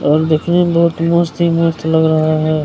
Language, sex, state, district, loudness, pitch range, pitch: Hindi, male, Bihar, Kishanganj, -14 LUFS, 155-170 Hz, 160 Hz